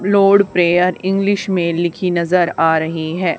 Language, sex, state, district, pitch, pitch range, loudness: Hindi, female, Haryana, Charkhi Dadri, 180 Hz, 170-195 Hz, -15 LUFS